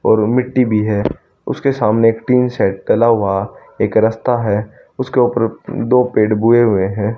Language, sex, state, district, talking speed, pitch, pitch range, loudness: Hindi, male, Haryana, Charkhi Dadri, 175 wpm, 115 Hz, 105-125 Hz, -15 LUFS